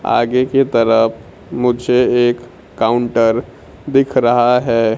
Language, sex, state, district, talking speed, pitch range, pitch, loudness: Hindi, male, Bihar, Kaimur, 110 wpm, 115-125 Hz, 120 Hz, -14 LUFS